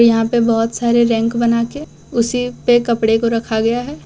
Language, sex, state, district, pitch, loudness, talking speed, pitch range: Hindi, female, Jharkhand, Deoghar, 235 Hz, -16 LUFS, 190 wpm, 230-240 Hz